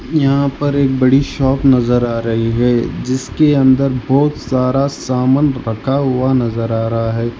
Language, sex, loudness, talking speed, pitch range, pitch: Hindi, male, -15 LUFS, 160 wpm, 120-140 Hz, 130 Hz